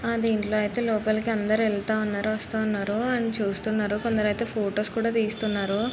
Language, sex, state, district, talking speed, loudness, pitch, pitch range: Telugu, female, Andhra Pradesh, Srikakulam, 140 wpm, -26 LUFS, 215 Hz, 210-225 Hz